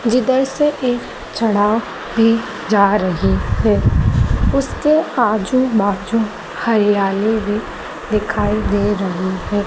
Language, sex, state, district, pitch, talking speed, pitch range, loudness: Hindi, female, Madhya Pradesh, Dhar, 210 Hz, 105 wpm, 190-230 Hz, -17 LUFS